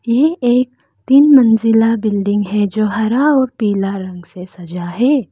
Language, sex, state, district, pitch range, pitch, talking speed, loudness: Hindi, female, Arunachal Pradesh, Lower Dibang Valley, 200-250 Hz, 225 Hz, 160 wpm, -14 LUFS